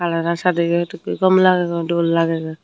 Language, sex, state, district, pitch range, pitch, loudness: Chakma, female, Tripura, Unakoti, 165-180 Hz, 170 Hz, -18 LUFS